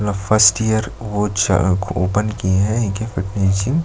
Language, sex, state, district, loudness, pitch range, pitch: Hindi, male, Chhattisgarh, Jashpur, -17 LUFS, 95-110 Hz, 105 Hz